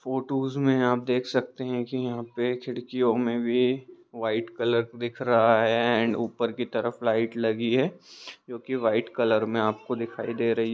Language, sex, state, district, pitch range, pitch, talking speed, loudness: Hindi, male, Jharkhand, Jamtara, 115-125 Hz, 120 Hz, 175 wpm, -26 LUFS